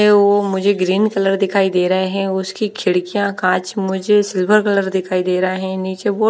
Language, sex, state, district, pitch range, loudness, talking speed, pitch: Hindi, female, Odisha, Nuapada, 185-205 Hz, -17 LUFS, 190 wpm, 195 Hz